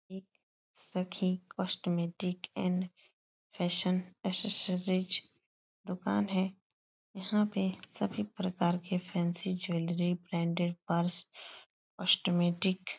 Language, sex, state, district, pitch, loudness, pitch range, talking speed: Hindi, female, Uttar Pradesh, Etah, 180 Hz, -31 LUFS, 175-190 Hz, 90 wpm